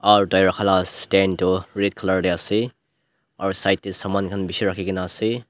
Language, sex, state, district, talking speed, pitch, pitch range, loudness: Nagamese, male, Nagaland, Dimapur, 205 wpm, 95 Hz, 95-105 Hz, -21 LUFS